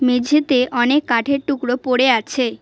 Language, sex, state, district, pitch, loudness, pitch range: Bengali, female, West Bengal, Cooch Behar, 255 Hz, -17 LUFS, 245-280 Hz